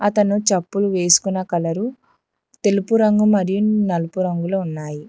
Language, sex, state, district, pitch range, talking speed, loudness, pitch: Telugu, female, Telangana, Hyderabad, 175-210 Hz, 120 wpm, -19 LUFS, 195 Hz